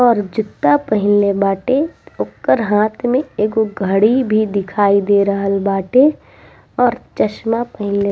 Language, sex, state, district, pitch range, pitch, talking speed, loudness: Bhojpuri, female, Bihar, East Champaran, 200-235 Hz, 210 Hz, 135 wpm, -16 LUFS